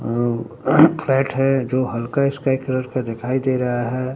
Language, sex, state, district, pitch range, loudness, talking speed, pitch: Hindi, male, Bihar, Katihar, 120-135 Hz, -19 LUFS, 175 wpm, 130 Hz